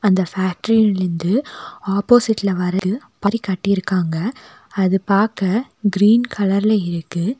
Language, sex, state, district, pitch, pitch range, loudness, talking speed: Tamil, female, Tamil Nadu, Nilgiris, 200 Hz, 185-215 Hz, -18 LUFS, 80 wpm